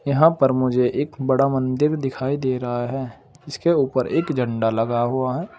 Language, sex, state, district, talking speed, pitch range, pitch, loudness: Hindi, male, Uttar Pradesh, Saharanpur, 185 wpm, 125-140 Hz, 130 Hz, -21 LUFS